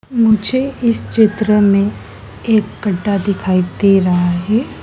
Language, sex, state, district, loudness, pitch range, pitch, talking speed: Hindi, female, Madhya Pradesh, Dhar, -14 LUFS, 195-225 Hz, 205 Hz, 125 wpm